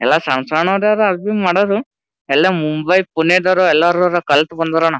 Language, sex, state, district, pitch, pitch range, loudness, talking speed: Kannada, male, Karnataka, Gulbarga, 175 Hz, 160-190 Hz, -14 LUFS, 170 wpm